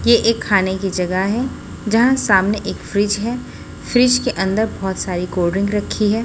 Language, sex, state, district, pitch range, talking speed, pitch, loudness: Hindi, female, Chhattisgarh, Raipur, 190-230 Hz, 190 wpm, 205 Hz, -18 LUFS